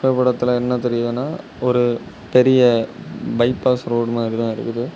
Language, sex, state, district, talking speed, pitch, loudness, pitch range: Tamil, male, Tamil Nadu, Kanyakumari, 110 wpm, 120 Hz, -19 LUFS, 120-125 Hz